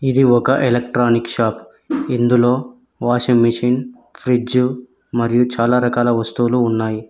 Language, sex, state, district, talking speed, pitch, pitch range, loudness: Telugu, male, Telangana, Mahabubabad, 110 wpm, 120 Hz, 120-125 Hz, -17 LUFS